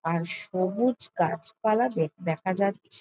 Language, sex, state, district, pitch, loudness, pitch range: Bengali, female, West Bengal, Jhargram, 185 Hz, -28 LUFS, 165-215 Hz